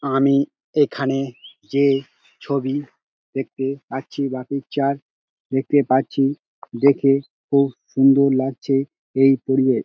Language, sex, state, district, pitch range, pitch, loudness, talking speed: Bengali, male, West Bengal, Dakshin Dinajpur, 135-140 Hz, 135 Hz, -20 LUFS, 95 wpm